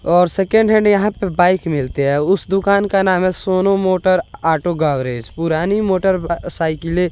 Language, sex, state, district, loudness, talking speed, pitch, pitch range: Hindi, male, Bihar, West Champaran, -16 LUFS, 175 wpm, 180 Hz, 165-195 Hz